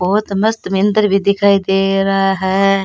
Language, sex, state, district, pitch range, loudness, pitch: Rajasthani, female, Rajasthan, Churu, 195-200 Hz, -14 LUFS, 195 Hz